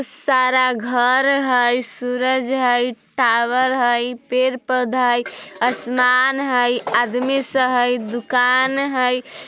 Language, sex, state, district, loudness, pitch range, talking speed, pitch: Bajjika, female, Bihar, Vaishali, -18 LUFS, 245-260 Hz, 100 wpm, 250 Hz